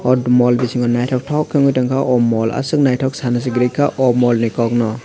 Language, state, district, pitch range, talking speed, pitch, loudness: Kokborok, Tripura, West Tripura, 120-135 Hz, 225 wpm, 125 Hz, -16 LUFS